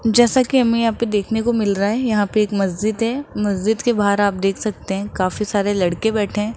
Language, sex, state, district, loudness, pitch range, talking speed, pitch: Hindi, male, Rajasthan, Jaipur, -19 LUFS, 200-230 Hz, 245 wpm, 210 Hz